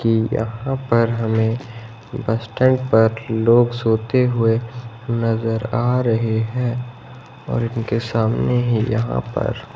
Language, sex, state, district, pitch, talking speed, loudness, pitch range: Hindi, male, Himachal Pradesh, Shimla, 115 Hz, 125 wpm, -19 LUFS, 115-120 Hz